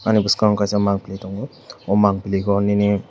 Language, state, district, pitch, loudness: Kokborok, Tripura, West Tripura, 100 Hz, -19 LUFS